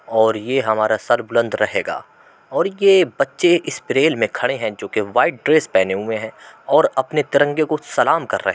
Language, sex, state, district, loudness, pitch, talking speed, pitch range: Hindi, male, Uttar Pradesh, Muzaffarnagar, -18 LUFS, 135 Hz, 190 wpm, 110-155 Hz